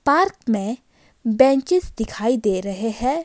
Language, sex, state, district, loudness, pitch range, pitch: Hindi, female, Himachal Pradesh, Shimla, -20 LUFS, 220-270 Hz, 240 Hz